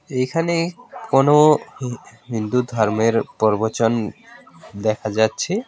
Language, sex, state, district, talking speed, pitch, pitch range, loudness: Bengali, male, West Bengal, Alipurduar, 75 wpm, 125 Hz, 110-155 Hz, -19 LUFS